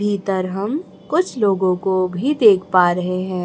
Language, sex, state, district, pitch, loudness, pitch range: Hindi, male, Chhattisgarh, Raipur, 190 Hz, -18 LUFS, 185-210 Hz